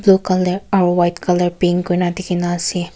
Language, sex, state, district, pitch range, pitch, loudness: Nagamese, female, Nagaland, Kohima, 175-185 Hz, 180 Hz, -17 LUFS